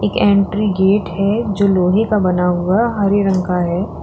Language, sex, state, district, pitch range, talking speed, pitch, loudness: Hindi, female, Uttar Pradesh, Lalitpur, 180-205 Hz, 195 wpm, 195 Hz, -15 LUFS